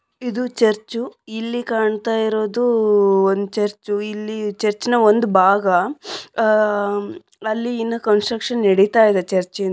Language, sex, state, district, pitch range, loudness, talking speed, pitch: Kannada, female, Karnataka, Dharwad, 205-230 Hz, -18 LUFS, 125 wpm, 215 Hz